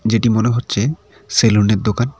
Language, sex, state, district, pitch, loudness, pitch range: Bengali, male, West Bengal, Cooch Behar, 115 Hz, -16 LUFS, 105-120 Hz